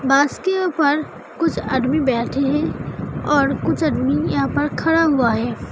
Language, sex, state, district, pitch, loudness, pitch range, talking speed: Hindi, female, Uttar Pradesh, Hamirpur, 275 Hz, -19 LUFS, 235-305 Hz, 160 wpm